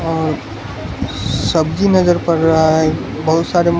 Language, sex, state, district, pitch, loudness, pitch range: Hindi, male, Gujarat, Valsad, 160 Hz, -15 LUFS, 120-170 Hz